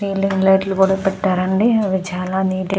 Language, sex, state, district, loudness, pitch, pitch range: Telugu, female, Andhra Pradesh, Krishna, -17 LUFS, 190 Hz, 185-195 Hz